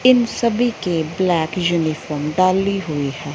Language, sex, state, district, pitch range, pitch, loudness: Hindi, female, Punjab, Fazilka, 155-200 Hz, 175 Hz, -19 LUFS